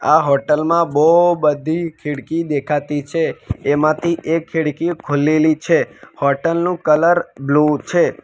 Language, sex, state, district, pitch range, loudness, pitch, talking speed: Gujarati, male, Gujarat, Valsad, 145-165 Hz, -17 LUFS, 155 Hz, 130 wpm